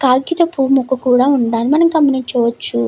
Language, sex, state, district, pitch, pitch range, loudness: Telugu, female, Andhra Pradesh, Krishna, 260 Hz, 245-280 Hz, -14 LUFS